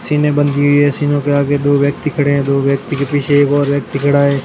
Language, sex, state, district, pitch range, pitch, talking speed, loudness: Hindi, male, Rajasthan, Barmer, 140-145 Hz, 145 Hz, 270 wpm, -14 LUFS